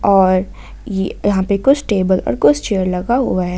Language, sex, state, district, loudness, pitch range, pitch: Hindi, female, Jharkhand, Ranchi, -16 LUFS, 180-200 Hz, 190 Hz